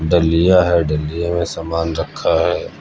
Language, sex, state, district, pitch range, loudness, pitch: Hindi, male, Uttar Pradesh, Lucknow, 80-85 Hz, -17 LUFS, 85 Hz